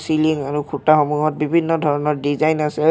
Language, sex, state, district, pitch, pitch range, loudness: Assamese, male, Assam, Kamrup Metropolitan, 150 Hz, 145-155 Hz, -18 LUFS